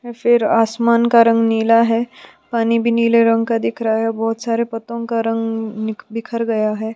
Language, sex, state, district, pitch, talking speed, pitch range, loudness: Hindi, female, Chhattisgarh, Sukma, 230 Hz, 200 wpm, 225-235 Hz, -17 LUFS